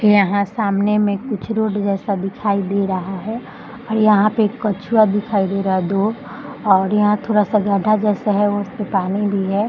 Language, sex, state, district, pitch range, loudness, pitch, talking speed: Hindi, female, Bihar, Jahanabad, 200-215 Hz, -18 LUFS, 205 Hz, 180 wpm